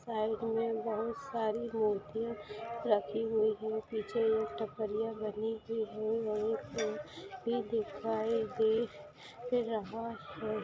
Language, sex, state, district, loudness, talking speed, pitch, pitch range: Hindi, female, Bihar, Gaya, -35 LUFS, 125 wpm, 220 Hz, 215-230 Hz